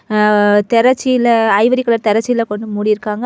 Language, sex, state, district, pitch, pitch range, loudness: Tamil, female, Tamil Nadu, Kanyakumari, 225 Hz, 210-240 Hz, -13 LUFS